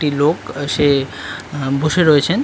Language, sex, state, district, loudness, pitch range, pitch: Bengali, male, West Bengal, Kolkata, -17 LUFS, 140-155 Hz, 145 Hz